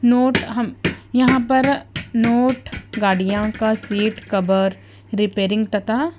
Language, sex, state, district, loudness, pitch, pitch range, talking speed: Hindi, female, Bihar, West Champaran, -19 LUFS, 220 Hz, 205-245 Hz, 105 wpm